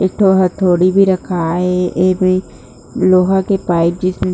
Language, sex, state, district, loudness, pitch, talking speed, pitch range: Chhattisgarhi, female, Chhattisgarh, Jashpur, -14 LUFS, 185 Hz, 125 wpm, 175-185 Hz